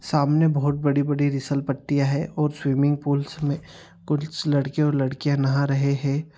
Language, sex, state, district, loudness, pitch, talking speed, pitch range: Hindi, male, Bihar, Darbhanga, -23 LUFS, 145 Hz, 160 wpm, 140-150 Hz